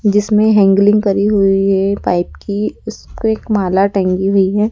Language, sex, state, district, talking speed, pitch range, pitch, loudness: Hindi, female, Madhya Pradesh, Dhar, 165 wpm, 195-210 Hz, 200 Hz, -14 LUFS